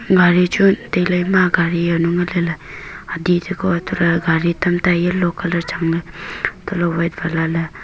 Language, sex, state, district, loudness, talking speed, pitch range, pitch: Wancho, female, Arunachal Pradesh, Longding, -17 LUFS, 190 wpm, 170-180 Hz, 175 Hz